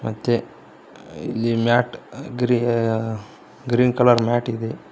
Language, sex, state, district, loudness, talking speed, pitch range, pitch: Kannada, male, Karnataka, Koppal, -21 LUFS, 95 wpm, 115-120 Hz, 120 Hz